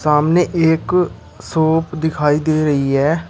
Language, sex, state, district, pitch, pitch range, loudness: Hindi, male, Uttar Pradesh, Shamli, 155 Hz, 145-160 Hz, -16 LUFS